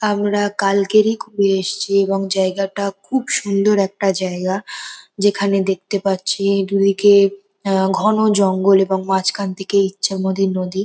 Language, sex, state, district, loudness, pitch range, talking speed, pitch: Bengali, female, West Bengal, North 24 Parganas, -17 LUFS, 190-200 Hz, 120 wpm, 195 Hz